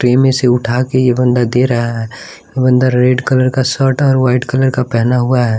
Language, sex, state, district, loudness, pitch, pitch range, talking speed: Hindi, male, Bihar, West Champaran, -13 LUFS, 125 Hz, 125-130 Hz, 245 wpm